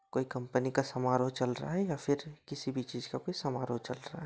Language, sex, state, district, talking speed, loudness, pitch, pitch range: Hindi, male, Jharkhand, Sahebganj, 255 wpm, -35 LUFS, 130 Hz, 125-150 Hz